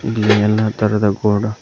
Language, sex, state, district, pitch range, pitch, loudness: Kannada, male, Karnataka, Koppal, 105-110 Hz, 105 Hz, -16 LUFS